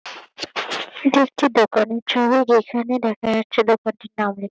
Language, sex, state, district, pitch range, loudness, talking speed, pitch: Bengali, female, West Bengal, Kolkata, 220-250 Hz, -19 LUFS, 160 wpm, 230 Hz